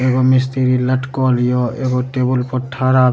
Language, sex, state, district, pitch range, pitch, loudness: Maithili, male, Bihar, Supaul, 125-130 Hz, 130 Hz, -16 LUFS